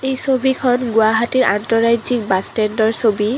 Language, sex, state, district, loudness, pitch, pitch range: Assamese, female, Assam, Kamrup Metropolitan, -16 LUFS, 230 Hz, 220-255 Hz